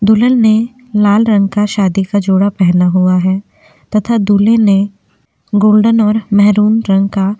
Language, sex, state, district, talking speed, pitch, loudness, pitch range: Hindi, female, Chhattisgarh, Korba, 160 wpm, 205 Hz, -11 LUFS, 195-215 Hz